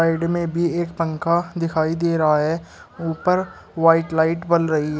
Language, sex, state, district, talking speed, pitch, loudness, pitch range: Hindi, male, Uttar Pradesh, Shamli, 180 wpm, 165 Hz, -20 LUFS, 160-170 Hz